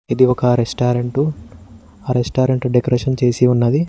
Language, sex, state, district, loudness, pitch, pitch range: Telugu, male, Telangana, Mahabubabad, -17 LUFS, 125 Hz, 120-130 Hz